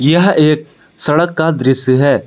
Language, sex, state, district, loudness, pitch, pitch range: Hindi, male, Jharkhand, Palamu, -13 LUFS, 150 Hz, 140-160 Hz